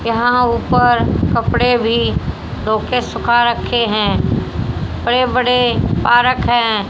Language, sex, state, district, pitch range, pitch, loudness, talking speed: Hindi, female, Haryana, Jhajjar, 230-245 Hz, 240 Hz, -15 LUFS, 105 wpm